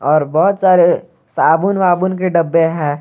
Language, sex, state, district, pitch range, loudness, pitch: Hindi, male, Jharkhand, Garhwa, 155-185 Hz, -14 LUFS, 170 Hz